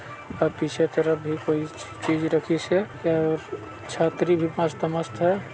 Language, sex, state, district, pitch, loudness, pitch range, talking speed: Chhattisgarhi, male, Chhattisgarh, Balrampur, 160 Hz, -25 LUFS, 155-165 Hz, 140 wpm